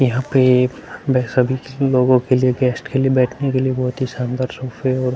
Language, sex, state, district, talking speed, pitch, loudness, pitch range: Hindi, male, Uttar Pradesh, Hamirpur, 210 wpm, 130 Hz, -18 LUFS, 125-130 Hz